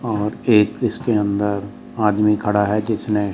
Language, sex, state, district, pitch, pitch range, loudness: Hindi, male, Rajasthan, Jaipur, 105 Hz, 105-110 Hz, -19 LUFS